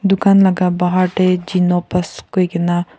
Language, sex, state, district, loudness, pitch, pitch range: Nagamese, female, Nagaland, Kohima, -15 LUFS, 180 Hz, 180-185 Hz